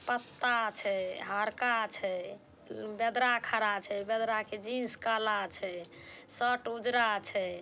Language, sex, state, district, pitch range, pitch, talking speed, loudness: Maithili, female, Bihar, Saharsa, 205-240 Hz, 225 Hz, 125 wpm, -32 LUFS